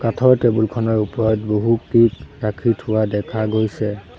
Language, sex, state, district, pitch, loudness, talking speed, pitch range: Assamese, male, Assam, Sonitpur, 110 Hz, -18 LUFS, 130 wpm, 105-115 Hz